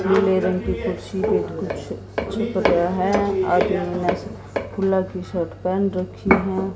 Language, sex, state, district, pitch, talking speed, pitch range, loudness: Hindi, female, Haryana, Jhajjar, 185 Hz, 135 wpm, 175-195 Hz, -22 LUFS